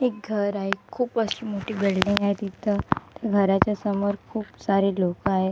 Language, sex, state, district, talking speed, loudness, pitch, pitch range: Marathi, female, Maharashtra, Gondia, 165 wpm, -25 LUFS, 200 Hz, 195-215 Hz